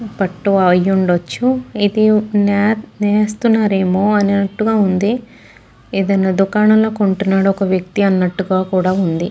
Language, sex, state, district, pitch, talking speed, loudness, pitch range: Telugu, female, Andhra Pradesh, Guntur, 200 Hz, 95 wpm, -15 LUFS, 190-215 Hz